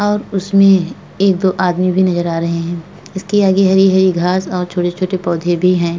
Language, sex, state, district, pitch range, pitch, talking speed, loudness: Hindi, female, Uttar Pradesh, Etah, 175-190 Hz, 185 Hz, 200 wpm, -14 LUFS